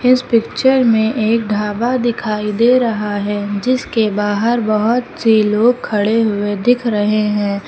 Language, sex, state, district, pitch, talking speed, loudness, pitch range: Hindi, female, Uttar Pradesh, Lucknow, 220 Hz, 150 wpm, -15 LUFS, 210-240 Hz